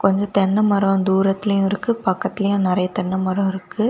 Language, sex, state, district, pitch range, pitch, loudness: Tamil, female, Tamil Nadu, Kanyakumari, 190-200 Hz, 195 Hz, -19 LUFS